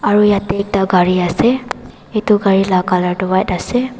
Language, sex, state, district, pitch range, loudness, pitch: Nagamese, female, Nagaland, Dimapur, 185-210 Hz, -15 LUFS, 195 Hz